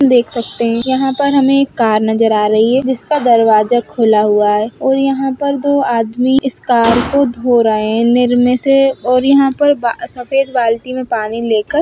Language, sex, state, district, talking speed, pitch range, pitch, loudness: Hindi, female, Bihar, Gaya, 195 wpm, 230-270 Hz, 245 Hz, -13 LUFS